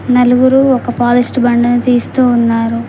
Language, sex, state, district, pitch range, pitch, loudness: Telugu, female, Telangana, Mahabubabad, 240-250 Hz, 245 Hz, -11 LUFS